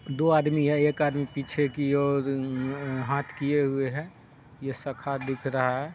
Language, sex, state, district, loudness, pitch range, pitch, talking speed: Hindi, male, Bihar, Saharsa, -27 LUFS, 135-145 Hz, 140 Hz, 180 wpm